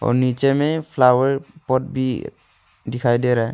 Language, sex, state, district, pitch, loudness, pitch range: Hindi, male, Arunachal Pradesh, Longding, 130 Hz, -19 LUFS, 125-140 Hz